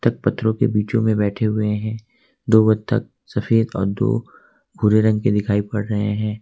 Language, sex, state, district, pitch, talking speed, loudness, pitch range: Hindi, male, Jharkhand, Ranchi, 110 Hz, 175 wpm, -20 LUFS, 105-110 Hz